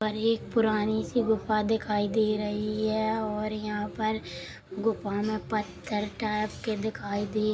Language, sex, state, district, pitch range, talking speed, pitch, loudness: Hindi, female, Chhattisgarh, Sukma, 210-220 Hz, 150 wpm, 215 Hz, -29 LUFS